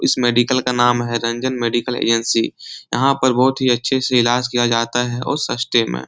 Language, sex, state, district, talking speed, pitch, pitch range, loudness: Hindi, male, Bihar, Supaul, 205 wpm, 120 Hz, 120-130 Hz, -17 LUFS